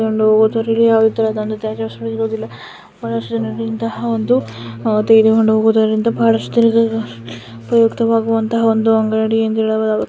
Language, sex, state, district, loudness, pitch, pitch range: Kannada, female, Karnataka, Shimoga, -15 LUFS, 220 Hz, 220-225 Hz